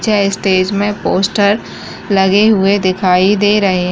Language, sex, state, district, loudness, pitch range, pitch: Kumaoni, female, Uttarakhand, Uttarkashi, -12 LUFS, 190-205 Hz, 200 Hz